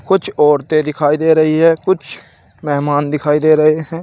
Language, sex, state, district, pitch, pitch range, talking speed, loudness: Hindi, male, Uttar Pradesh, Shamli, 155 Hz, 150-160 Hz, 180 wpm, -14 LUFS